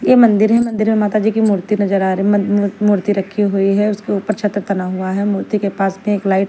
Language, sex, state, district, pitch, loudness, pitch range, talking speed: Hindi, female, Delhi, New Delhi, 205 Hz, -16 LUFS, 195-210 Hz, 270 wpm